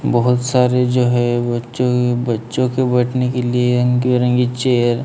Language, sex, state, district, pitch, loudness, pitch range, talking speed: Hindi, male, Maharashtra, Gondia, 125 Hz, -16 LUFS, 120-125 Hz, 165 wpm